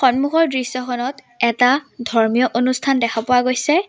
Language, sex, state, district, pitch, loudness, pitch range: Assamese, female, Assam, Sonitpur, 255 Hz, -18 LUFS, 240-270 Hz